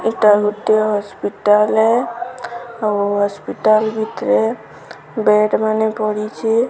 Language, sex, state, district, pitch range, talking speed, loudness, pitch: Odia, female, Odisha, Sambalpur, 210-225 Hz, 90 wpm, -17 LUFS, 215 Hz